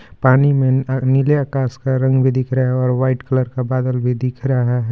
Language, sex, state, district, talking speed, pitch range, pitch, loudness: Hindi, female, Jharkhand, Garhwa, 245 wpm, 125-130 Hz, 130 Hz, -17 LUFS